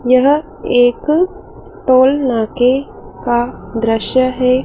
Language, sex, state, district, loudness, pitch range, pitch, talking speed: Hindi, female, Madhya Pradesh, Dhar, -14 LUFS, 245-280 Hz, 255 Hz, 90 wpm